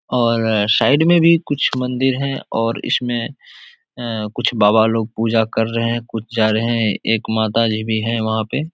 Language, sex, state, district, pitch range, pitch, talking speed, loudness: Hindi, male, Bihar, Supaul, 110-125 Hz, 115 Hz, 165 wpm, -17 LUFS